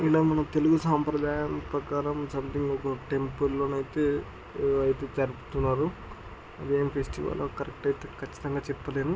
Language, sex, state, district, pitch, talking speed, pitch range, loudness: Telugu, male, Andhra Pradesh, Chittoor, 140 Hz, 125 wpm, 135-150 Hz, -29 LUFS